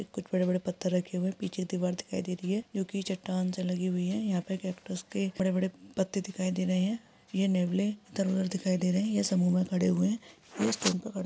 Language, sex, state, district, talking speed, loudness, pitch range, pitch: Hindi, female, Bihar, Kishanganj, 235 wpm, -31 LUFS, 180-195 Hz, 185 Hz